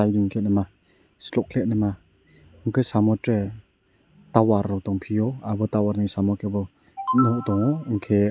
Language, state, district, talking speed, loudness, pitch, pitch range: Kokborok, Tripura, West Tripura, 115 wpm, -24 LUFS, 105 Hz, 100-110 Hz